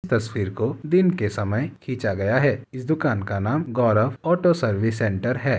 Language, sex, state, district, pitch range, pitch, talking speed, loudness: Hindi, male, Uttar Pradesh, Ghazipur, 110-145 Hz, 125 Hz, 185 wpm, -23 LUFS